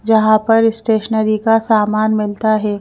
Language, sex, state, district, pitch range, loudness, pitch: Hindi, female, Madhya Pradesh, Bhopal, 215-225 Hz, -14 LUFS, 220 Hz